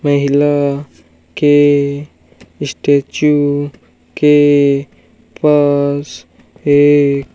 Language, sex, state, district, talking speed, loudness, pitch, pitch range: Hindi, male, Rajasthan, Bikaner, 55 wpm, -13 LUFS, 145 Hz, 140-145 Hz